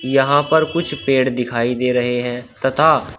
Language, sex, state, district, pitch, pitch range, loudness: Hindi, male, Uttar Pradesh, Shamli, 130 Hz, 125-145 Hz, -17 LUFS